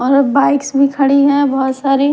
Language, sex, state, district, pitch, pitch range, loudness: Hindi, female, Haryana, Charkhi Dadri, 275 Hz, 275-280 Hz, -13 LUFS